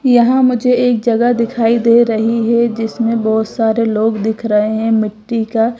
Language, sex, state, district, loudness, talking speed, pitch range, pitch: Hindi, female, Gujarat, Gandhinagar, -14 LUFS, 175 wpm, 220-235 Hz, 230 Hz